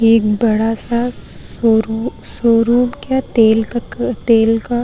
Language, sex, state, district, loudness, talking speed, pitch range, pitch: Hindi, female, Chhattisgarh, Balrampur, -15 LUFS, 125 wpm, 220-240 Hz, 230 Hz